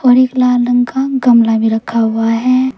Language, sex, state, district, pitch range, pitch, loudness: Hindi, female, Uttar Pradesh, Saharanpur, 230-255 Hz, 245 Hz, -12 LUFS